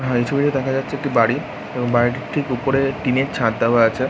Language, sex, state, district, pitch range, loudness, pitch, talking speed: Bengali, male, West Bengal, Jhargram, 120-135 Hz, -19 LUFS, 130 Hz, 235 wpm